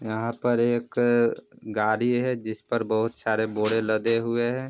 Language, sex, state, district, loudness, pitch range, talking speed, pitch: Hindi, male, Bihar, Vaishali, -25 LUFS, 110-120 Hz, 165 wpm, 115 Hz